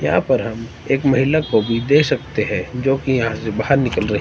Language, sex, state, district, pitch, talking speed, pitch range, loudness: Hindi, male, Himachal Pradesh, Shimla, 120 Hz, 240 wpm, 110-135 Hz, -18 LUFS